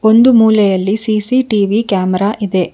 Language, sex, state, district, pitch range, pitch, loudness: Kannada, female, Karnataka, Bangalore, 195-220 Hz, 210 Hz, -12 LUFS